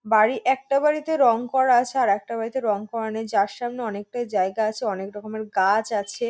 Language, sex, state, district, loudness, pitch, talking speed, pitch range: Bengali, female, West Bengal, North 24 Parganas, -23 LUFS, 225 Hz, 210 wpm, 205-245 Hz